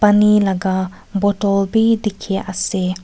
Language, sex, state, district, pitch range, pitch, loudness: Nagamese, female, Nagaland, Kohima, 190-210 Hz, 200 Hz, -17 LUFS